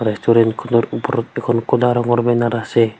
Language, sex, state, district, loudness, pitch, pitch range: Assamese, female, Assam, Sonitpur, -17 LUFS, 120 Hz, 115-120 Hz